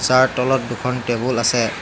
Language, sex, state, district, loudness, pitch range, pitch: Assamese, male, Assam, Hailakandi, -19 LUFS, 120-130 Hz, 125 Hz